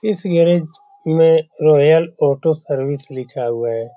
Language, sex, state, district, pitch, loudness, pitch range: Hindi, male, Bihar, Saran, 155 Hz, -16 LUFS, 135-165 Hz